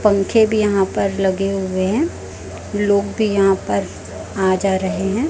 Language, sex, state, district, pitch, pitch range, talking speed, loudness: Hindi, female, Chhattisgarh, Raipur, 195 Hz, 190-205 Hz, 170 wpm, -18 LUFS